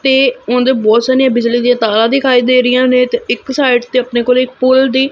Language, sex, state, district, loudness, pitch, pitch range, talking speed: Punjabi, female, Punjab, Fazilka, -11 LUFS, 250 Hz, 240-260 Hz, 245 wpm